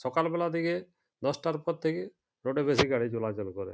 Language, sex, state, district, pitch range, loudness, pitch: Bengali, male, West Bengal, Purulia, 125-170 Hz, -31 LUFS, 165 Hz